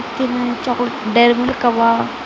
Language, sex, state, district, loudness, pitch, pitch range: Kannada, female, Karnataka, Bidar, -16 LUFS, 240 Hz, 235-245 Hz